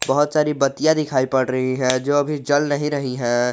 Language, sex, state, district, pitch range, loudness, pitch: Hindi, male, Jharkhand, Garhwa, 130-145 Hz, -20 LUFS, 140 Hz